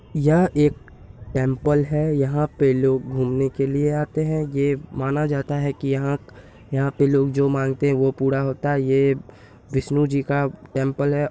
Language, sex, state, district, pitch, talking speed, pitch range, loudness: Hindi, male, Bihar, Purnia, 140 Hz, 180 wpm, 135-145 Hz, -21 LUFS